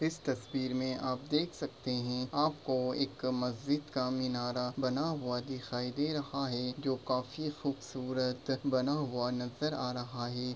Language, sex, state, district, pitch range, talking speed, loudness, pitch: Hindi, male, Jharkhand, Sahebganj, 125-140 Hz, 155 wpm, -35 LUFS, 130 Hz